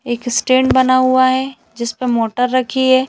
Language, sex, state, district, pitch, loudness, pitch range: Hindi, female, Chhattisgarh, Balrampur, 255 Hz, -15 LUFS, 245-260 Hz